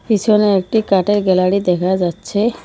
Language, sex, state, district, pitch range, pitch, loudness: Bengali, female, West Bengal, Cooch Behar, 185-210 Hz, 195 Hz, -15 LUFS